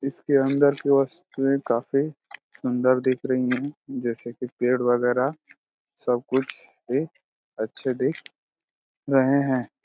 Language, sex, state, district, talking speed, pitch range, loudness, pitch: Hindi, male, Jharkhand, Jamtara, 115 wpm, 125-140 Hz, -24 LUFS, 130 Hz